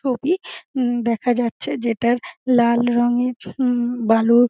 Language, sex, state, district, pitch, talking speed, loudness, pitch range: Bengali, female, West Bengal, Dakshin Dinajpur, 240 Hz, 120 wpm, -20 LUFS, 235-250 Hz